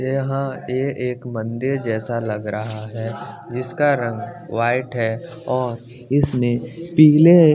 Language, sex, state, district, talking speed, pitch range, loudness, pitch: Hindi, male, Bihar, West Champaran, 125 wpm, 115-135 Hz, -20 LUFS, 125 Hz